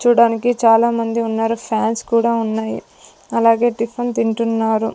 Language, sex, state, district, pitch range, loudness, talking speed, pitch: Telugu, female, Andhra Pradesh, Sri Satya Sai, 225-235 Hz, -17 LUFS, 120 wpm, 230 Hz